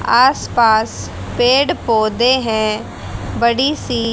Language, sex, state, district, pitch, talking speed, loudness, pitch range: Hindi, female, Haryana, Jhajjar, 235 Hz, 100 wpm, -15 LUFS, 220-255 Hz